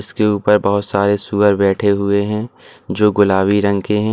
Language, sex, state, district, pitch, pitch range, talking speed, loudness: Hindi, male, Uttar Pradesh, Lalitpur, 100 Hz, 100-105 Hz, 190 wpm, -15 LUFS